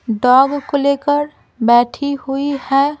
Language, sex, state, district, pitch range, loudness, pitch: Hindi, female, Bihar, Patna, 255-285 Hz, -15 LUFS, 275 Hz